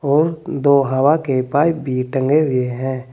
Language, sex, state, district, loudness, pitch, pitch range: Hindi, male, Uttar Pradesh, Saharanpur, -17 LUFS, 140 Hz, 130-150 Hz